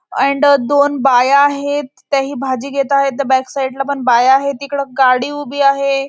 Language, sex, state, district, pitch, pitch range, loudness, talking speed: Marathi, female, Maharashtra, Dhule, 275 Hz, 265-280 Hz, -14 LUFS, 185 wpm